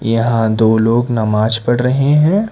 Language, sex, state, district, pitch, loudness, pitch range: Hindi, male, Karnataka, Bangalore, 115 Hz, -14 LUFS, 110-125 Hz